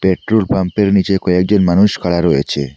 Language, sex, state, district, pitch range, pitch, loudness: Bengali, male, Assam, Hailakandi, 85-100 Hz, 95 Hz, -14 LUFS